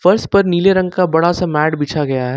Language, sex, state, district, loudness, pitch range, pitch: Hindi, male, Jharkhand, Ranchi, -15 LUFS, 150-185 Hz, 175 Hz